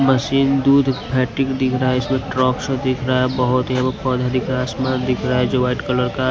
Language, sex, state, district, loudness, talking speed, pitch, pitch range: Hindi, male, Punjab, Fazilka, -18 LUFS, 265 wpm, 130 Hz, 125-130 Hz